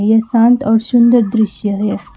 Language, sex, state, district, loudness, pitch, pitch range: Hindi, female, West Bengal, Alipurduar, -13 LUFS, 220 Hz, 210-235 Hz